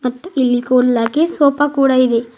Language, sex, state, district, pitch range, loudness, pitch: Kannada, female, Karnataka, Bidar, 245-285 Hz, -14 LUFS, 255 Hz